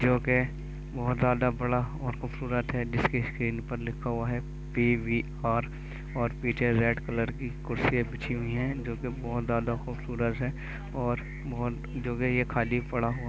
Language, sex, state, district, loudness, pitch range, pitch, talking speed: Hindi, male, Uttar Pradesh, Jyotiba Phule Nagar, -30 LUFS, 120-130 Hz, 125 Hz, 170 wpm